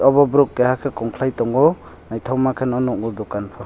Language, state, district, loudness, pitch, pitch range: Kokborok, Tripura, West Tripura, -19 LUFS, 125 Hz, 115-130 Hz